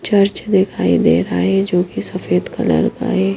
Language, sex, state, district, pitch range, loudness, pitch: Hindi, female, Himachal Pradesh, Shimla, 190-200 Hz, -16 LUFS, 195 Hz